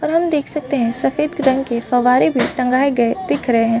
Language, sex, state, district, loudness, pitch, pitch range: Hindi, female, Chhattisgarh, Balrampur, -17 LUFS, 255 Hz, 240-295 Hz